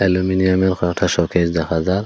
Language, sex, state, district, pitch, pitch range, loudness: Bengali, male, Assam, Hailakandi, 90 Hz, 85-95 Hz, -18 LUFS